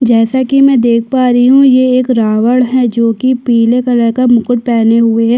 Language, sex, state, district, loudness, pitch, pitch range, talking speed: Hindi, female, Chhattisgarh, Sukma, -10 LUFS, 245 Hz, 230-255 Hz, 200 wpm